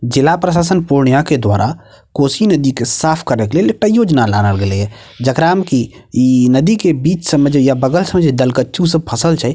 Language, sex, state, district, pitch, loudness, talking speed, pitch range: Maithili, male, Bihar, Purnia, 140 Hz, -13 LUFS, 230 wpm, 125-170 Hz